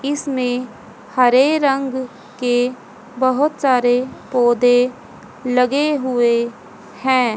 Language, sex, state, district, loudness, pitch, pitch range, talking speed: Hindi, female, Haryana, Jhajjar, -17 LUFS, 250 Hz, 245-265 Hz, 80 wpm